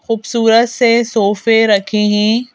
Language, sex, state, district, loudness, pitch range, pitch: Hindi, female, Madhya Pradesh, Bhopal, -13 LUFS, 210-230 Hz, 225 Hz